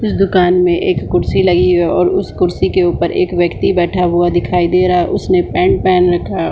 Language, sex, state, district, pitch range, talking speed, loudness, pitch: Hindi, female, Bihar, Supaul, 175-180 Hz, 240 wpm, -13 LUFS, 180 Hz